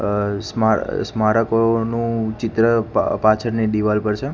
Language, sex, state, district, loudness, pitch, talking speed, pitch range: Gujarati, male, Gujarat, Gandhinagar, -19 LUFS, 110 Hz, 125 wpm, 105-115 Hz